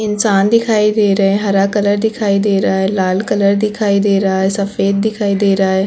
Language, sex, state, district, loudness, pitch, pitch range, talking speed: Hindi, female, Chhattisgarh, Korba, -14 LUFS, 200 Hz, 195-210 Hz, 225 wpm